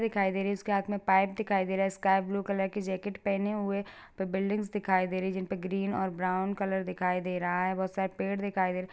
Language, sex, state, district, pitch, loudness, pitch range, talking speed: Hindi, female, Bihar, Jahanabad, 195 Hz, -31 LUFS, 185-200 Hz, 275 wpm